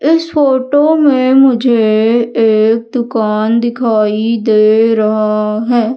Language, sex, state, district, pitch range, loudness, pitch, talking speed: Hindi, female, Madhya Pradesh, Umaria, 215-255 Hz, -11 LUFS, 230 Hz, 100 wpm